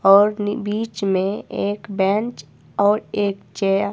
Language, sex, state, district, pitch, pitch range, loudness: Hindi, female, Himachal Pradesh, Shimla, 200 Hz, 195-210 Hz, -21 LUFS